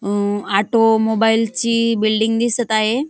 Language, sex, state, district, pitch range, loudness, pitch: Marathi, female, Maharashtra, Dhule, 215-230 Hz, -17 LUFS, 225 Hz